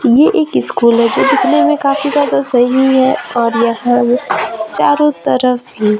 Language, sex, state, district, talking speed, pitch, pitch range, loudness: Hindi, female, Chhattisgarh, Raipur, 150 wpm, 245 Hz, 230-275 Hz, -12 LUFS